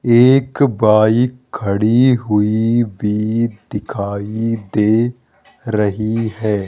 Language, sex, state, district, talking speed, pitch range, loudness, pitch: Hindi, male, Rajasthan, Jaipur, 80 wpm, 105-120 Hz, -16 LUFS, 110 Hz